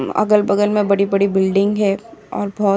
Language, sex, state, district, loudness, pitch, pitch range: Hindi, female, Uttar Pradesh, Jyotiba Phule Nagar, -17 LUFS, 200 Hz, 195-210 Hz